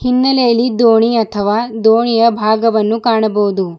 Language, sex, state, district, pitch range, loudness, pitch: Kannada, female, Karnataka, Bidar, 215-235 Hz, -13 LUFS, 225 Hz